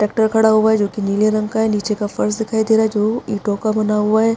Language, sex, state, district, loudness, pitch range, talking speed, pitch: Hindi, female, Bihar, Madhepura, -17 LUFS, 210-220 Hz, 330 wpm, 215 Hz